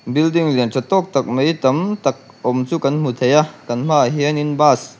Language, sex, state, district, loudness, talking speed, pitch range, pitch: Mizo, male, Mizoram, Aizawl, -17 LUFS, 240 wpm, 130-155 Hz, 145 Hz